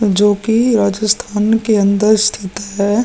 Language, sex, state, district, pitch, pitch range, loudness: Hindi, male, Bihar, Vaishali, 210 Hz, 200-220 Hz, -14 LUFS